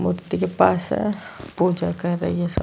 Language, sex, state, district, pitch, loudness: Hindi, female, Chhattisgarh, Sukma, 175 Hz, -22 LUFS